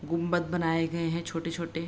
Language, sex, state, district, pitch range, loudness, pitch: Hindi, female, Bihar, Begusarai, 165-170 Hz, -30 LUFS, 165 Hz